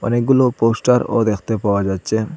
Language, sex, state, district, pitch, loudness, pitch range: Bengali, male, Assam, Hailakandi, 115 Hz, -17 LUFS, 105-120 Hz